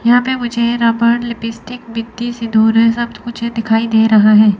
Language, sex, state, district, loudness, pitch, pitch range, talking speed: Hindi, female, Chandigarh, Chandigarh, -14 LUFS, 230 Hz, 225-235 Hz, 185 wpm